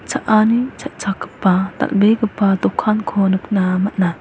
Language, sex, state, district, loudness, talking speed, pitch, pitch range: Garo, female, Meghalaya, West Garo Hills, -17 LUFS, 85 wpm, 200 Hz, 190-215 Hz